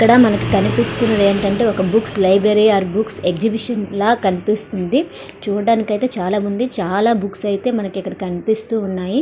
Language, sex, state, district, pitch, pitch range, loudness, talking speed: Telugu, female, Andhra Pradesh, Srikakulam, 210 Hz, 195-225 Hz, -17 LUFS, 135 wpm